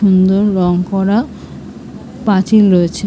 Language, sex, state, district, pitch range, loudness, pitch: Bengali, female, West Bengal, North 24 Parganas, 185-205 Hz, -12 LUFS, 195 Hz